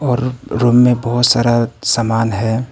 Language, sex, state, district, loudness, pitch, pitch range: Hindi, male, Arunachal Pradesh, Papum Pare, -14 LUFS, 120 Hz, 115-125 Hz